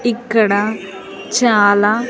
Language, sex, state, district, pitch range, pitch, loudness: Telugu, female, Andhra Pradesh, Sri Satya Sai, 205-235 Hz, 215 Hz, -14 LUFS